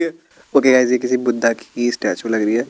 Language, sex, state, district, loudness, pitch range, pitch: Hindi, male, Chandigarh, Chandigarh, -17 LUFS, 115-130 Hz, 120 Hz